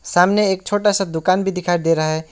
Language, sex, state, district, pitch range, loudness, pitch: Hindi, male, West Bengal, Alipurduar, 165-195 Hz, -18 LUFS, 185 Hz